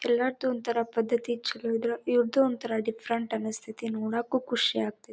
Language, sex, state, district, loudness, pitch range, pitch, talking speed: Kannada, female, Karnataka, Dharwad, -29 LUFS, 225-240 Hz, 235 Hz, 140 wpm